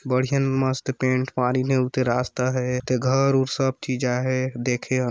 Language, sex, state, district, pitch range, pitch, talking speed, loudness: Hindi, male, Chhattisgarh, Sarguja, 125-135 Hz, 130 Hz, 190 wpm, -23 LUFS